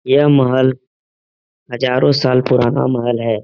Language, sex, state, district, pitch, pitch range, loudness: Hindi, male, Bihar, Lakhisarai, 125 Hz, 115-130 Hz, -14 LUFS